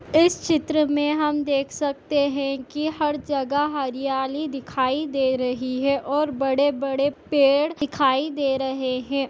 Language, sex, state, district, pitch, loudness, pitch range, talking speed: Hindi, female, Chhattisgarh, Bastar, 280 Hz, -23 LUFS, 270-295 Hz, 150 wpm